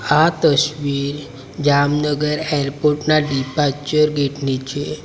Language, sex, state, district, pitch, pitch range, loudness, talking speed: Gujarati, male, Gujarat, Valsad, 145 Hz, 140-150 Hz, -18 LUFS, 105 wpm